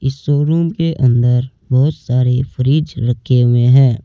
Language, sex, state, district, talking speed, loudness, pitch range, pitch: Hindi, male, Uttar Pradesh, Saharanpur, 135 wpm, -14 LUFS, 125-145 Hz, 130 Hz